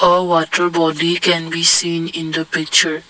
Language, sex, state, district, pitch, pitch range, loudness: English, male, Assam, Kamrup Metropolitan, 165 Hz, 160-175 Hz, -15 LUFS